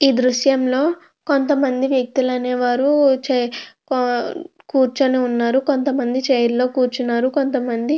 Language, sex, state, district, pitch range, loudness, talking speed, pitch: Telugu, female, Andhra Pradesh, Krishna, 250-275 Hz, -18 LUFS, 115 wpm, 260 Hz